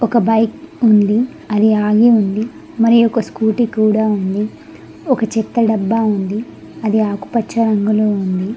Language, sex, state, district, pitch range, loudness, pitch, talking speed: Telugu, female, Telangana, Mahabubabad, 210-235 Hz, -15 LUFS, 220 Hz, 125 wpm